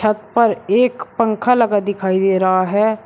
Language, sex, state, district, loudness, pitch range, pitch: Hindi, male, Uttar Pradesh, Shamli, -16 LUFS, 195-230 Hz, 210 Hz